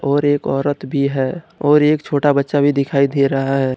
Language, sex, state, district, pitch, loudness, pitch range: Hindi, male, Jharkhand, Deoghar, 140 Hz, -16 LUFS, 135-145 Hz